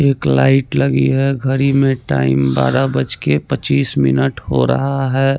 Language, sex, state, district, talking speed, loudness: Hindi, male, Chandigarh, Chandigarh, 165 wpm, -15 LUFS